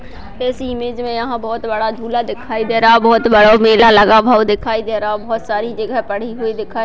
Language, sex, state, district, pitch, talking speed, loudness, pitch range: Hindi, female, Chhattisgarh, Bastar, 225 Hz, 225 wpm, -14 LUFS, 220-230 Hz